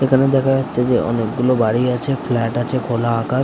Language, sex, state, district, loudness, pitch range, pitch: Bengali, male, West Bengal, Kolkata, -18 LUFS, 115-130 Hz, 125 Hz